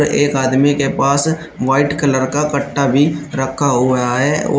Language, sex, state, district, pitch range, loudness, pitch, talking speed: Hindi, male, Uttar Pradesh, Shamli, 135-145 Hz, -15 LUFS, 140 Hz, 155 wpm